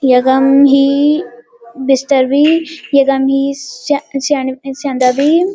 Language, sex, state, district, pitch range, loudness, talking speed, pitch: Garhwali, female, Uttarakhand, Uttarkashi, 265-295 Hz, -12 LUFS, 110 wpm, 275 Hz